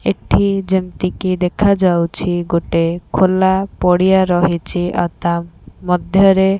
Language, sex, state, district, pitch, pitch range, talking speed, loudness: Odia, female, Odisha, Khordha, 180 Hz, 175-190 Hz, 90 wpm, -15 LUFS